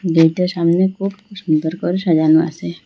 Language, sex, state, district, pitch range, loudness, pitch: Bengali, female, Assam, Hailakandi, 160-185 Hz, -16 LUFS, 170 Hz